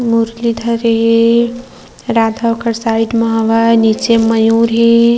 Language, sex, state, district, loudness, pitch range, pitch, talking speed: Hindi, female, Chhattisgarh, Kabirdham, -12 LUFS, 225-235 Hz, 230 Hz, 115 wpm